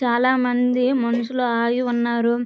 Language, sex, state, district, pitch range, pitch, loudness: Telugu, female, Andhra Pradesh, Krishna, 235-250 Hz, 245 Hz, -20 LUFS